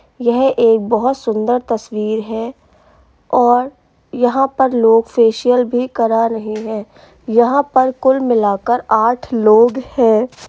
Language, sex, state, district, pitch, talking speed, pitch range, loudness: Hindi, female, Uttar Pradesh, Varanasi, 235 Hz, 130 wpm, 225-250 Hz, -14 LUFS